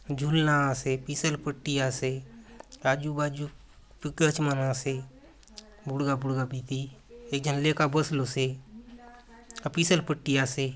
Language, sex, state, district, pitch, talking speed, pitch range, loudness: Halbi, male, Chhattisgarh, Bastar, 145 Hz, 125 wpm, 135-155 Hz, -28 LUFS